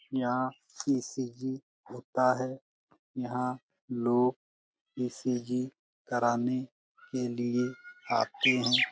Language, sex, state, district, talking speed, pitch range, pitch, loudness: Hindi, male, Bihar, Jamui, 80 wpm, 125-130 Hz, 125 Hz, -31 LUFS